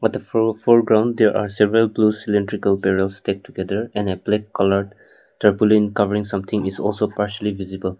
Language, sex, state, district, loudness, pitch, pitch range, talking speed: English, male, Nagaland, Kohima, -19 LUFS, 105 Hz, 100-110 Hz, 170 wpm